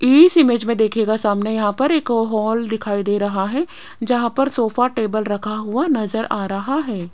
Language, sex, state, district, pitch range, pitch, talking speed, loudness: Hindi, female, Rajasthan, Jaipur, 210-250 Hz, 225 Hz, 195 wpm, -18 LUFS